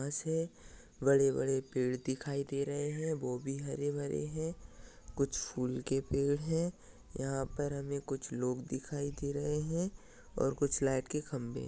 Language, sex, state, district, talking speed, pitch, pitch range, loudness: Hindi, male, Maharashtra, Solapur, 165 wpm, 140 Hz, 135-145 Hz, -36 LUFS